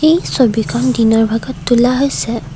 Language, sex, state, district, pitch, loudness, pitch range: Assamese, female, Assam, Kamrup Metropolitan, 240 Hz, -14 LUFS, 225-255 Hz